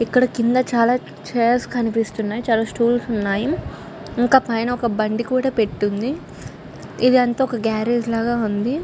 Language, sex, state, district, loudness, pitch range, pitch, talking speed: Telugu, female, Andhra Pradesh, Chittoor, -20 LUFS, 225-250 Hz, 235 Hz, 140 wpm